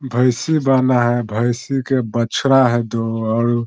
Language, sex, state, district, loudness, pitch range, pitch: Hindi, male, Bihar, Muzaffarpur, -17 LUFS, 115-130 Hz, 120 Hz